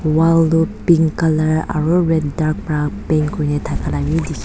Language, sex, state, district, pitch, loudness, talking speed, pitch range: Nagamese, female, Nagaland, Dimapur, 155 Hz, -17 LUFS, 190 wpm, 150-165 Hz